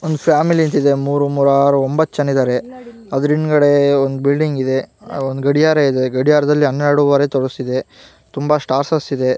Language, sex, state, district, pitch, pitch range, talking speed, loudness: Kannada, female, Karnataka, Gulbarga, 140 Hz, 135-150 Hz, 155 wpm, -15 LUFS